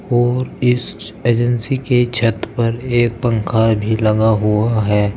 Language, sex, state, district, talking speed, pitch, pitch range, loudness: Hindi, male, Uttar Pradesh, Saharanpur, 140 wpm, 115 Hz, 110-120 Hz, -16 LUFS